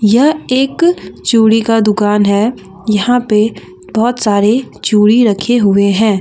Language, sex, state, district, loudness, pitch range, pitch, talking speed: Hindi, female, Jharkhand, Deoghar, -12 LUFS, 205-240 Hz, 220 Hz, 135 wpm